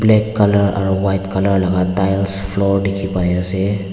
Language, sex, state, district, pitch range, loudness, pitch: Nagamese, male, Nagaland, Dimapur, 95-100 Hz, -16 LUFS, 95 Hz